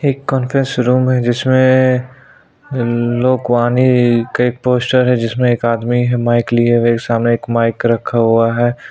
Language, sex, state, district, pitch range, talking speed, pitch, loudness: Hindi, male, Chhattisgarh, Sukma, 120-130 Hz, 155 wpm, 120 Hz, -14 LUFS